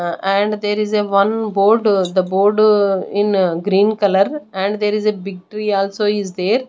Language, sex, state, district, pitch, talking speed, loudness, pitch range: English, female, Haryana, Rohtak, 205 Hz, 205 wpm, -16 LUFS, 195-210 Hz